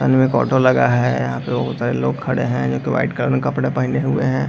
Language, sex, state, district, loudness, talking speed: Hindi, male, Bihar, Madhepura, -18 LUFS, 295 wpm